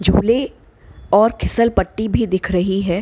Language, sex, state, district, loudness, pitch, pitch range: Hindi, female, Bihar, Gaya, -17 LUFS, 205 Hz, 185-230 Hz